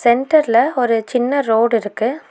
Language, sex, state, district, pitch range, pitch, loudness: Tamil, female, Tamil Nadu, Nilgiris, 230-275 Hz, 240 Hz, -16 LUFS